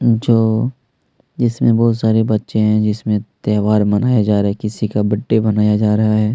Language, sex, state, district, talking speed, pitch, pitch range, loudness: Hindi, male, Chhattisgarh, Kabirdham, 180 wpm, 110 Hz, 105-115 Hz, -16 LUFS